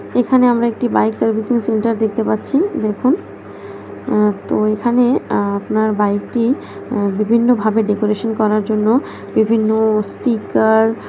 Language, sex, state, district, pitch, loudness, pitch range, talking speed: Bengali, female, West Bengal, North 24 Parganas, 220 Hz, -16 LUFS, 215-240 Hz, 120 wpm